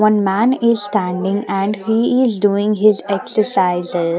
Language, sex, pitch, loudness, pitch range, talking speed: English, female, 205 Hz, -16 LUFS, 195-220 Hz, 145 wpm